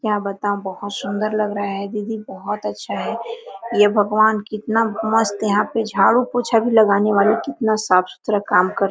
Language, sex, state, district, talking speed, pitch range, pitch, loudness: Hindi, female, Jharkhand, Sahebganj, 190 wpm, 200-220 Hz, 210 Hz, -19 LUFS